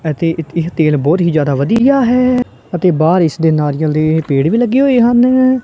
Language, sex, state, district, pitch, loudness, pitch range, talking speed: Punjabi, male, Punjab, Kapurthala, 165 Hz, -12 LUFS, 155-240 Hz, 200 wpm